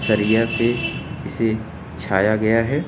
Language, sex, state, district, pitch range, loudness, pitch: Hindi, male, Uttar Pradesh, Lucknow, 105-115 Hz, -20 LUFS, 110 Hz